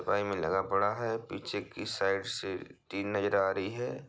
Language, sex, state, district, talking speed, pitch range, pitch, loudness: Hindi, male, Bihar, Bhagalpur, 190 wpm, 95-105 Hz, 100 Hz, -33 LUFS